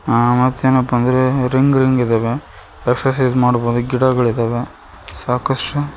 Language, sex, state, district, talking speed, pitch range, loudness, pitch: Kannada, male, Karnataka, Koppal, 100 wpm, 120-130 Hz, -16 LUFS, 125 Hz